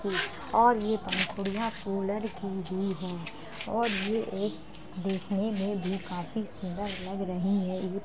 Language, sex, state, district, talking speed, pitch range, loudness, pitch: Hindi, female, Uttar Pradesh, Jalaun, 155 wpm, 185-210 Hz, -31 LUFS, 195 Hz